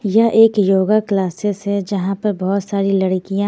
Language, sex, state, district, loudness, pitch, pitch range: Hindi, female, Haryana, Jhajjar, -16 LUFS, 200 Hz, 195-205 Hz